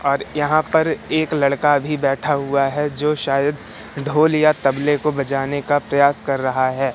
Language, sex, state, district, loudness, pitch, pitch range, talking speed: Hindi, male, Madhya Pradesh, Katni, -18 LUFS, 145 Hz, 140-150 Hz, 180 wpm